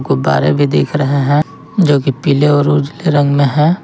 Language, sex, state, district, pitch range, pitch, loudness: Hindi, male, Jharkhand, Ranchi, 140-150 Hz, 145 Hz, -13 LUFS